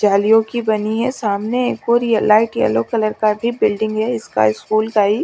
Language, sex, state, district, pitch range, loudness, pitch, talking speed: Hindi, female, Chandigarh, Chandigarh, 210-230 Hz, -17 LUFS, 215 Hz, 205 wpm